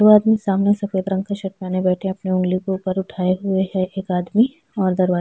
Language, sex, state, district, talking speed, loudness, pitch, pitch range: Hindi, female, Chhattisgarh, Sukma, 275 wpm, -20 LUFS, 190 Hz, 185-200 Hz